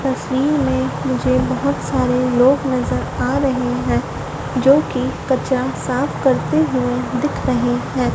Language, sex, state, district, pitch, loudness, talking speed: Hindi, female, Madhya Pradesh, Dhar, 245 Hz, -18 LUFS, 140 wpm